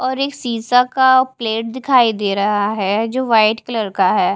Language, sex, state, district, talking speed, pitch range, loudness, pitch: Hindi, female, Haryana, Charkhi Dadri, 195 wpm, 215-255 Hz, -16 LUFS, 230 Hz